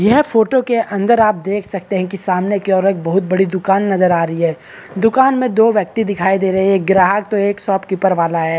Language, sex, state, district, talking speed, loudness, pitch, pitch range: Hindi, male, Bihar, Kishanganj, 250 wpm, -15 LUFS, 195 Hz, 185-215 Hz